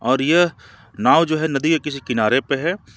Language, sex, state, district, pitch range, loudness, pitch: Hindi, male, Jharkhand, Ranchi, 125-165 Hz, -18 LUFS, 145 Hz